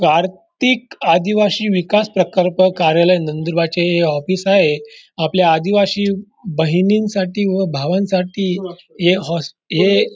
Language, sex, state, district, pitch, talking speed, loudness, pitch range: Marathi, male, Maharashtra, Dhule, 185 Hz, 100 wpm, -16 LUFS, 170-200 Hz